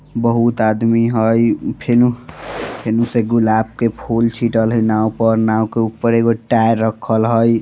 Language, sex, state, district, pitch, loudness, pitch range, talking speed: Bajjika, female, Bihar, Vaishali, 115 Hz, -16 LUFS, 110-115 Hz, 165 wpm